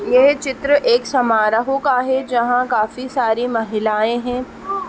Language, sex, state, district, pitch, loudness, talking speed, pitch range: Hindi, female, Uttar Pradesh, Etah, 250 Hz, -17 LUFS, 135 wpm, 230-270 Hz